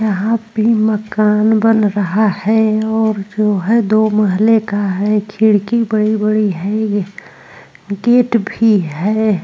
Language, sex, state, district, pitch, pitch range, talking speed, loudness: Hindi, female, Maharashtra, Chandrapur, 215 Hz, 205-220 Hz, 135 wpm, -14 LUFS